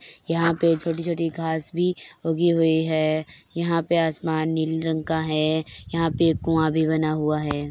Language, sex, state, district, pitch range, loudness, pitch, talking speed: Hindi, female, Bihar, Begusarai, 155-165 Hz, -23 LUFS, 160 Hz, 180 wpm